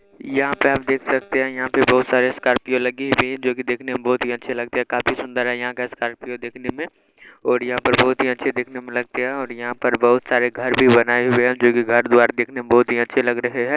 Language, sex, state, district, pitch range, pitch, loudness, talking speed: Maithili, male, Bihar, Saharsa, 120-130 Hz, 125 Hz, -19 LUFS, 275 wpm